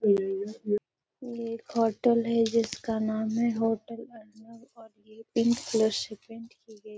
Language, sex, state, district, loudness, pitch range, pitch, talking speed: Hindi, female, Bihar, Gaya, -28 LUFS, 215-230 Hz, 225 Hz, 145 wpm